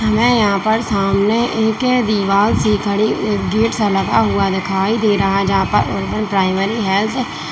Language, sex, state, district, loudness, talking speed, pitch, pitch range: Hindi, female, Uttar Pradesh, Saharanpur, -16 LUFS, 175 wpm, 210 Hz, 195-220 Hz